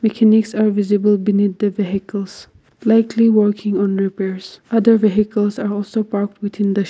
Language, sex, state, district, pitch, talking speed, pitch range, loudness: English, female, Nagaland, Kohima, 205 Hz, 150 wpm, 200-220 Hz, -17 LUFS